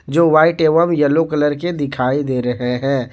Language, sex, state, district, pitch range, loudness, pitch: Hindi, male, Jharkhand, Garhwa, 130-160 Hz, -16 LUFS, 145 Hz